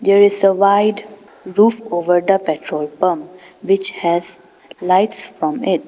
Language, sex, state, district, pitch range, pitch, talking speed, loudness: English, female, Arunachal Pradesh, Papum Pare, 175-205 Hz, 195 Hz, 145 wpm, -16 LUFS